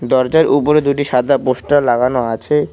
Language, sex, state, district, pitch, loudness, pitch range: Bengali, male, West Bengal, Cooch Behar, 140 Hz, -14 LUFS, 125-145 Hz